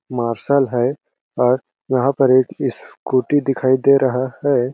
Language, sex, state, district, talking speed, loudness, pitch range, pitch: Hindi, male, Chhattisgarh, Balrampur, 140 wpm, -18 LUFS, 125-135 Hz, 130 Hz